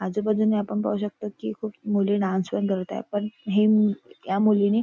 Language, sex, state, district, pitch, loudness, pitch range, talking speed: Marathi, female, Maharashtra, Nagpur, 205 Hz, -24 LUFS, 200-215 Hz, 185 wpm